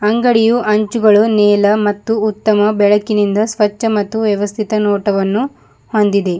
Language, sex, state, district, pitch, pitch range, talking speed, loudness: Kannada, female, Karnataka, Bidar, 210 Hz, 205-220 Hz, 105 wpm, -14 LUFS